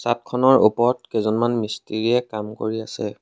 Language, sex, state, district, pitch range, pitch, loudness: Assamese, male, Assam, Sonitpur, 110-120 Hz, 110 Hz, -21 LUFS